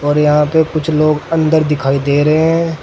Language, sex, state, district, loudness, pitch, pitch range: Hindi, male, Uttar Pradesh, Saharanpur, -13 LUFS, 155 Hz, 150-160 Hz